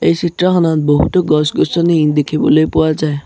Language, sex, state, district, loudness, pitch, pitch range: Assamese, male, Assam, Sonitpur, -13 LUFS, 155 Hz, 150-170 Hz